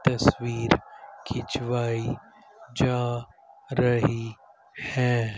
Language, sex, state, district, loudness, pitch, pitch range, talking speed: Hindi, male, Haryana, Rohtak, -27 LUFS, 120 Hz, 115-125 Hz, 55 wpm